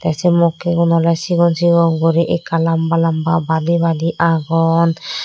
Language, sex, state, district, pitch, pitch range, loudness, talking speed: Chakma, female, Tripura, Dhalai, 165 Hz, 165-170 Hz, -15 LUFS, 150 wpm